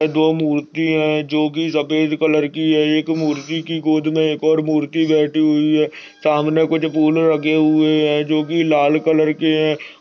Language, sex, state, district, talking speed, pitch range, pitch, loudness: Hindi, male, Chhattisgarh, Sarguja, 175 wpm, 150-160 Hz, 155 Hz, -17 LUFS